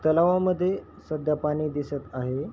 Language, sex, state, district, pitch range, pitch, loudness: Marathi, male, Maharashtra, Chandrapur, 145-175 Hz, 150 Hz, -26 LUFS